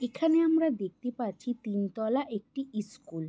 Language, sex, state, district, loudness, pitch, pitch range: Bengali, female, West Bengal, Jhargram, -31 LUFS, 245 Hz, 210-270 Hz